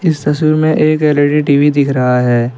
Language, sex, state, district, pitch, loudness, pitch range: Hindi, male, Jharkhand, Deoghar, 145 Hz, -12 LUFS, 135-155 Hz